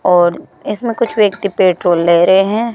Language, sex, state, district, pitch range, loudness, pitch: Hindi, female, Rajasthan, Jaipur, 175-225 Hz, -13 LUFS, 195 Hz